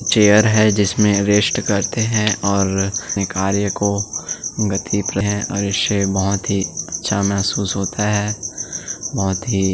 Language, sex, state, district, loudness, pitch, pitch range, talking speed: Hindi, male, Chhattisgarh, Sukma, -18 LUFS, 100 Hz, 100-105 Hz, 140 wpm